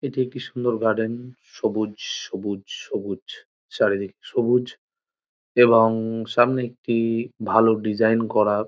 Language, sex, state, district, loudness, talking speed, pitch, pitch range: Bengali, male, West Bengal, North 24 Parganas, -22 LUFS, 110 wpm, 115 Hz, 110-125 Hz